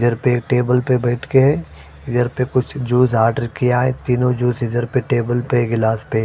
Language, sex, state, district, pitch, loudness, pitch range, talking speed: Hindi, male, Punjab, Fazilka, 125 Hz, -18 LUFS, 120-125 Hz, 200 wpm